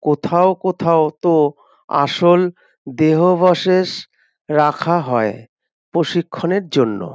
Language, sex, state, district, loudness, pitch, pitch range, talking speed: Bengali, male, West Bengal, North 24 Parganas, -16 LUFS, 170 Hz, 150-180 Hz, 75 wpm